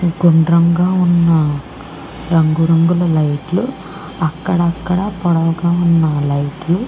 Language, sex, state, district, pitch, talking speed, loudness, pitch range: Telugu, female, Andhra Pradesh, Srikakulam, 170 Hz, 95 wpm, -15 LUFS, 160-175 Hz